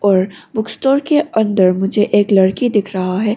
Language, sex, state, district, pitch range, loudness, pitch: Hindi, female, Arunachal Pradesh, Longding, 190-220 Hz, -15 LUFS, 205 Hz